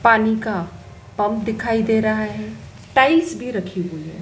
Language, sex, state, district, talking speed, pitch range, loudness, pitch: Hindi, female, Madhya Pradesh, Dhar, 170 wpm, 175-225 Hz, -20 LUFS, 215 Hz